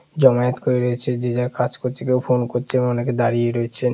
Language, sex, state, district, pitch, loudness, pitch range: Bengali, male, West Bengal, Malda, 125 Hz, -20 LUFS, 120-125 Hz